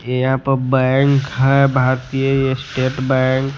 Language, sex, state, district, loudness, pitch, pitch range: Hindi, male, Bihar, West Champaran, -16 LUFS, 130 Hz, 130-135 Hz